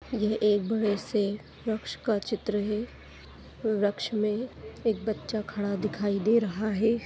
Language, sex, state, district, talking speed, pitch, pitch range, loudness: Hindi, female, Uttar Pradesh, Ghazipur, 145 wpm, 215 Hz, 205-220 Hz, -29 LUFS